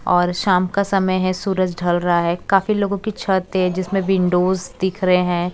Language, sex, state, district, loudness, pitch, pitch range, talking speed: Hindi, female, Chhattisgarh, Raipur, -19 LUFS, 185 Hz, 180-195 Hz, 205 wpm